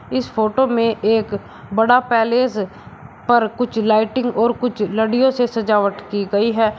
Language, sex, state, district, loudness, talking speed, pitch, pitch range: Hindi, male, Uttar Pradesh, Shamli, -18 LUFS, 150 wpm, 225 Hz, 215-245 Hz